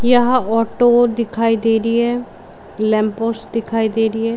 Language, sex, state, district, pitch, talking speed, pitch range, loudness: Hindi, female, Jharkhand, Sahebganj, 230 Hz, 150 wpm, 225-240 Hz, -17 LUFS